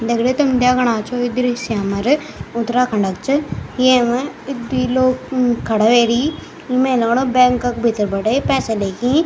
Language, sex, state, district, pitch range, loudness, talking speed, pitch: Garhwali, male, Uttarakhand, Tehri Garhwal, 230-255 Hz, -17 LUFS, 175 wpm, 245 Hz